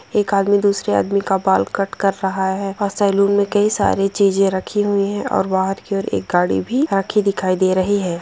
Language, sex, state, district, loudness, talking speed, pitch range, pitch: Hindi, female, Bihar, Begusarai, -18 LUFS, 220 wpm, 190-205 Hz, 195 Hz